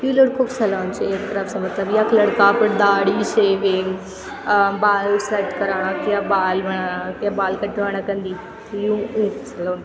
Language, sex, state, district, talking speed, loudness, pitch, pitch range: Garhwali, female, Uttarakhand, Tehri Garhwal, 195 wpm, -19 LUFS, 200 Hz, 190-210 Hz